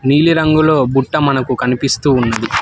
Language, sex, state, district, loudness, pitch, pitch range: Telugu, male, Telangana, Hyderabad, -13 LUFS, 135 Hz, 125-155 Hz